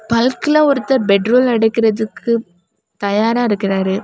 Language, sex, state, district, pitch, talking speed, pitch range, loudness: Tamil, female, Tamil Nadu, Kanyakumari, 225 Hz, 90 wpm, 205-245 Hz, -15 LUFS